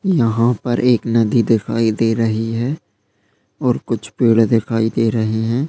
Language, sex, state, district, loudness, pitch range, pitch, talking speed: Hindi, male, Bihar, Bhagalpur, -17 LUFS, 110-120 Hz, 115 Hz, 160 wpm